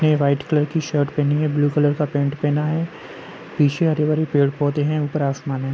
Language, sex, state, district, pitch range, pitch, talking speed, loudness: Hindi, male, Uttar Pradesh, Jalaun, 145-155 Hz, 150 Hz, 230 wpm, -20 LUFS